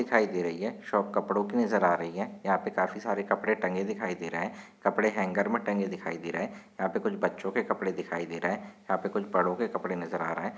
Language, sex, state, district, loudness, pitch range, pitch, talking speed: Hindi, male, Maharashtra, Nagpur, -30 LUFS, 85-105 Hz, 95 Hz, 280 wpm